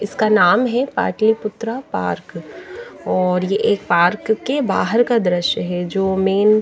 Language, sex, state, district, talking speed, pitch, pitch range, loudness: Hindi, female, Bihar, Patna, 155 wpm, 215 Hz, 190-240 Hz, -18 LUFS